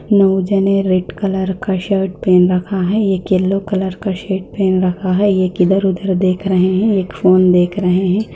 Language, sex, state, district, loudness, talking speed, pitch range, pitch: Hindi, female, Bihar, Purnia, -15 LUFS, 195 wpm, 185-195 Hz, 190 Hz